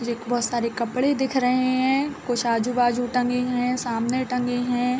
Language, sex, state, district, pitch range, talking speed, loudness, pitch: Hindi, female, Uttar Pradesh, Jalaun, 240-255 Hz, 170 wpm, -23 LUFS, 245 Hz